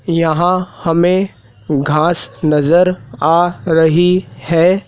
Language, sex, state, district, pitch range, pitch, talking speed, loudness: Hindi, male, Madhya Pradesh, Dhar, 150-180 Hz, 165 Hz, 85 wpm, -14 LUFS